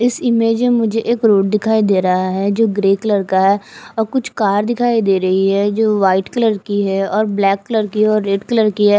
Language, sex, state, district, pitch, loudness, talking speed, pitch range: Hindi, female, Punjab, Fazilka, 210 Hz, -15 LUFS, 240 wpm, 195-225 Hz